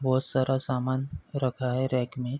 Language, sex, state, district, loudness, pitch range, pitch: Hindi, male, Uttar Pradesh, Deoria, -28 LUFS, 125-130 Hz, 130 Hz